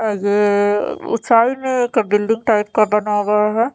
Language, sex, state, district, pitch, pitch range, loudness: Hindi, female, Haryana, Charkhi Dadri, 215 Hz, 210-230 Hz, -16 LUFS